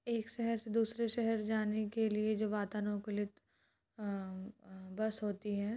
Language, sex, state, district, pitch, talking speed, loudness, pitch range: Hindi, female, Bihar, Gaya, 215 Hz, 155 wpm, -38 LUFS, 205-225 Hz